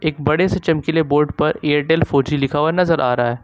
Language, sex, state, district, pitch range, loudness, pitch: Hindi, male, Uttar Pradesh, Lucknow, 145-160 Hz, -17 LUFS, 150 Hz